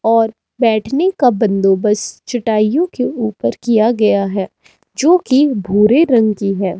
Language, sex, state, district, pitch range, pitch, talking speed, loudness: Hindi, female, Himachal Pradesh, Shimla, 205-250 Hz, 225 Hz, 140 wpm, -14 LUFS